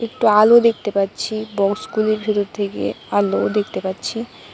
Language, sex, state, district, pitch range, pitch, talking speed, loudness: Bengali, female, Tripura, West Tripura, 205-220 Hz, 210 Hz, 130 wpm, -18 LUFS